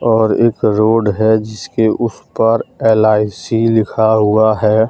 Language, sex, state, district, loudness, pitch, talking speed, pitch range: Hindi, male, Jharkhand, Deoghar, -13 LUFS, 110 Hz, 135 wpm, 110-115 Hz